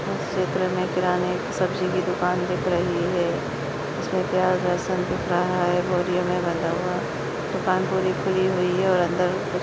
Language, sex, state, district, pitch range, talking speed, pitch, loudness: Hindi, female, Chhattisgarh, Jashpur, 180-185 Hz, 180 wpm, 180 Hz, -24 LUFS